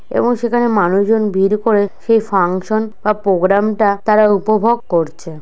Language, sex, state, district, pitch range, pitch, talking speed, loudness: Bengali, female, West Bengal, Purulia, 195-220 Hz, 210 Hz, 145 wpm, -15 LUFS